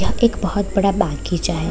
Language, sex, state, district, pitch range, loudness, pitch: Hindi, female, Bihar, Sitamarhi, 170-205 Hz, -19 LUFS, 195 Hz